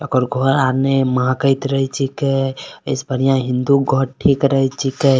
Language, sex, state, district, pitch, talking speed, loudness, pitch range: Maithili, male, Bihar, Supaul, 135 Hz, 185 wpm, -17 LUFS, 130-135 Hz